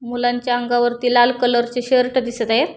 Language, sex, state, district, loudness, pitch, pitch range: Marathi, female, Maharashtra, Pune, -18 LUFS, 245 Hz, 240-245 Hz